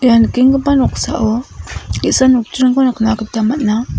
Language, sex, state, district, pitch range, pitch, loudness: Garo, female, Meghalaya, South Garo Hills, 225-260 Hz, 245 Hz, -13 LUFS